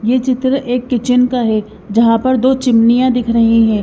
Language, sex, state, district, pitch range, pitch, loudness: Hindi, female, Haryana, Rohtak, 230-255 Hz, 245 Hz, -13 LUFS